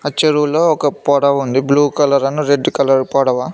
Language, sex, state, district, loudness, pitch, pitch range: Telugu, male, Telangana, Mahabubabad, -14 LUFS, 140 Hz, 135-150 Hz